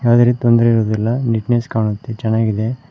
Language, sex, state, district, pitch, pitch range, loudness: Kannada, male, Karnataka, Koppal, 115 Hz, 110-120 Hz, -16 LUFS